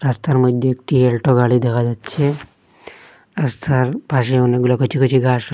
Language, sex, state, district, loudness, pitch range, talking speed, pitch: Bengali, male, Assam, Hailakandi, -17 LUFS, 125-135 Hz, 140 wpm, 130 Hz